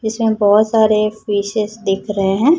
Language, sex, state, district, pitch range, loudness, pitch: Hindi, female, Chhattisgarh, Raipur, 205-220 Hz, -16 LUFS, 215 Hz